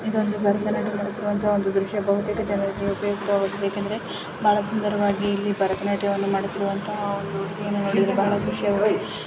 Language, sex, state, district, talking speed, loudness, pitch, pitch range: Kannada, female, Karnataka, Chamarajanagar, 125 wpm, -24 LUFS, 205 Hz, 200-205 Hz